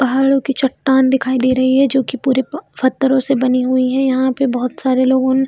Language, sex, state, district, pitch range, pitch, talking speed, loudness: Hindi, female, Chhattisgarh, Bilaspur, 255-270 Hz, 260 Hz, 250 wpm, -15 LUFS